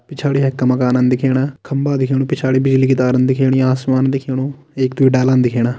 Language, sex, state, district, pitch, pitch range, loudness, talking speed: Kumaoni, male, Uttarakhand, Tehri Garhwal, 130 Hz, 130-135 Hz, -15 LUFS, 165 wpm